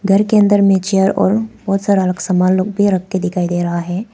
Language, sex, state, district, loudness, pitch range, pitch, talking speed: Hindi, female, Arunachal Pradesh, Lower Dibang Valley, -15 LUFS, 185-200 Hz, 195 Hz, 245 wpm